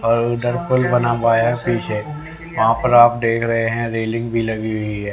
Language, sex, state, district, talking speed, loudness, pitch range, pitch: Hindi, male, Haryana, Rohtak, 200 wpm, -18 LUFS, 115-120 Hz, 115 Hz